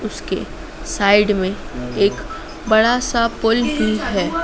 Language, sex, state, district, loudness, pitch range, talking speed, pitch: Hindi, female, Madhya Pradesh, Dhar, -18 LUFS, 195-230 Hz, 120 wpm, 215 Hz